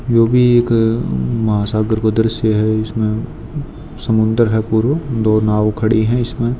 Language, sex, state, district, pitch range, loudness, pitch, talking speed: Hindi, male, Rajasthan, Churu, 110-120 Hz, -15 LUFS, 110 Hz, 145 wpm